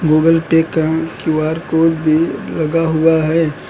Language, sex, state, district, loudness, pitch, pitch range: Hindi, male, Uttar Pradesh, Lucknow, -15 LUFS, 160 Hz, 155-165 Hz